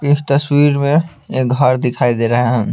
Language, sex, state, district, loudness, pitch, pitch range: Hindi, male, Bihar, Patna, -14 LUFS, 140 Hz, 125-145 Hz